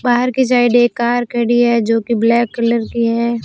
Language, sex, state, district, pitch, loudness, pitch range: Hindi, female, Rajasthan, Bikaner, 235 Hz, -14 LUFS, 235-240 Hz